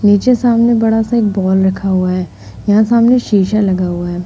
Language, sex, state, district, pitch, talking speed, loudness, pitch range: Hindi, female, Uttar Pradesh, Hamirpur, 205 Hz, 195 wpm, -13 LUFS, 190-230 Hz